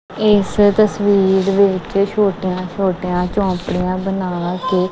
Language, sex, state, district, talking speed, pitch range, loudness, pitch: Punjabi, female, Punjab, Kapurthala, 100 wpm, 180-205 Hz, -16 LUFS, 190 Hz